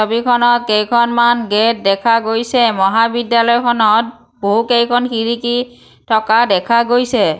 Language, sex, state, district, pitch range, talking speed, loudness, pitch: Assamese, female, Assam, Kamrup Metropolitan, 220-240 Hz, 90 wpm, -13 LUFS, 235 Hz